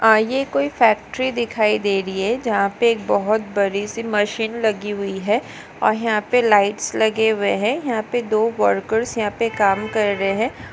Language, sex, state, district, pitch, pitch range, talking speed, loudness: Hindi, female, Maharashtra, Solapur, 215 Hz, 205-230 Hz, 195 wpm, -19 LUFS